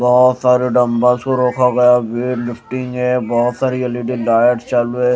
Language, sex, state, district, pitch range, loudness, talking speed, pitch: Hindi, male, Odisha, Malkangiri, 120-125 Hz, -15 LUFS, 175 wpm, 125 Hz